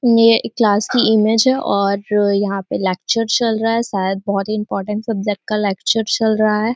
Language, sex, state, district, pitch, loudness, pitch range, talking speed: Hindi, female, Uttar Pradesh, Deoria, 215 Hz, -17 LUFS, 200-225 Hz, 195 wpm